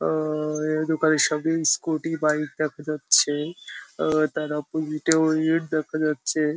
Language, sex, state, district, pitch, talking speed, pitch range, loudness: Bengali, male, West Bengal, Jhargram, 155 Hz, 120 wpm, 150-160 Hz, -23 LUFS